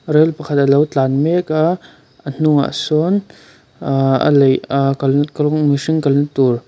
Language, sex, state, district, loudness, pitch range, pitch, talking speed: Mizo, male, Mizoram, Aizawl, -15 LUFS, 140-155 Hz, 145 Hz, 170 wpm